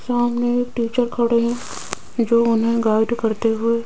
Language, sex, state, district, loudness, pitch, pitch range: Hindi, female, Rajasthan, Jaipur, -20 LUFS, 235 Hz, 230-240 Hz